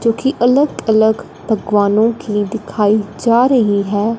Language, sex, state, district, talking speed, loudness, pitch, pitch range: Hindi, female, Punjab, Fazilka, 115 wpm, -15 LUFS, 220 Hz, 205-235 Hz